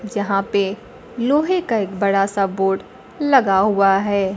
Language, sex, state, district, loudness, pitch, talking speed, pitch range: Hindi, female, Bihar, Kaimur, -18 LUFS, 200 Hz, 150 wpm, 195-235 Hz